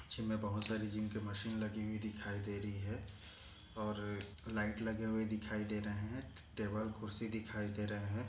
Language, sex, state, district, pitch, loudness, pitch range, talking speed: Hindi, male, Maharashtra, Aurangabad, 105 Hz, -42 LUFS, 105-110 Hz, 195 wpm